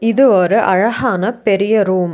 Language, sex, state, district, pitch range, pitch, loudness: Tamil, female, Tamil Nadu, Nilgiris, 185-235 Hz, 210 Hz, -13 LUFS